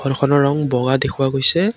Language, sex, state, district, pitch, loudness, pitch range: Assamese, male, Assam, Kamrup Metropolitan, 140 Hz, -17 LUFS, 135-145 Hz